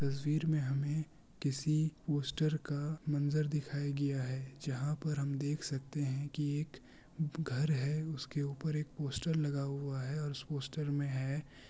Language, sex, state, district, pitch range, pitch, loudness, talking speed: Hindi, male, Bihar, Kishanganj, 140-155 Hz, 145 Hz, -37 LUFS, 175 wpm